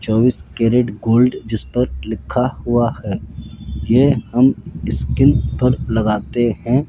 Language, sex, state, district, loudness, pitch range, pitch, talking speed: Hindi, male, Rajasthan, Jaipur, -17 LUFS, 110-125 Hz, 120 Hz, 115 wpm